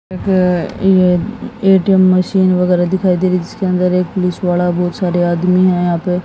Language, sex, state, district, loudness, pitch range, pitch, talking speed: Hindi, female, Haryana, Jhajjar, -14 LUFS, 180-185 Hz, 180 Hz, 155 wpm